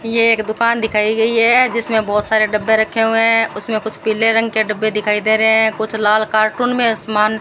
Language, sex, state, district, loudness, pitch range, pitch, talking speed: Hindi, female, Rajasthan, Bikaner, -14 LUFS, 215-225 Hz, 220 Hz, 235 wpm